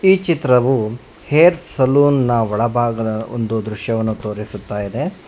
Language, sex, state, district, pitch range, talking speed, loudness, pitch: Kannada, male, Karnataka, Bangalore, 110-140 Hz, 100 wpm, -17 LUFS, 120 Hz